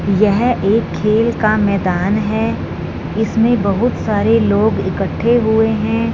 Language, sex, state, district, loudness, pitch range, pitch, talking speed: Hindi, female, Punjab, Fazilka, -15 LUFS, 200-225 Hz, 215 Hz, 125 wpm